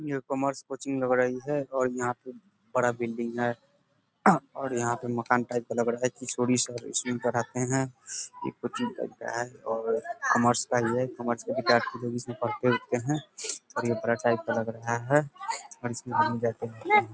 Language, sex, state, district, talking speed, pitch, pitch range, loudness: Hindi, male, Bihar, East Champaran, 190 wpm, 125 Hz, 120-135 Hz, -29 LUFS